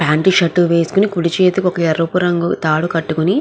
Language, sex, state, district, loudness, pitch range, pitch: Telugu, female, Andhra Pradesh, Guntur, -15 LUFS, 165-180 Hz, 170 Hz